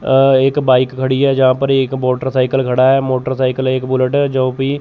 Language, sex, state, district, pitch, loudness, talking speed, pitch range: Hindi, male, Chandigarh, Chandigarh, 130 Hz, -14 LUFS, 225 wpm, 130-135 Hz